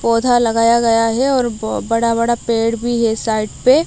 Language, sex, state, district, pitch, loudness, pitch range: Hindi, female, Odisha, Malkangiri, 230 Hz, -16 LUFS, 230-240 Hz